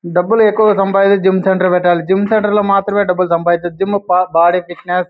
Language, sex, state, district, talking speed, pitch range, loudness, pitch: Telugu, male, Andhra Pradesh, Anantapur, 190 wpm, 180-200 Hz, -13 LUFS, 190 Hz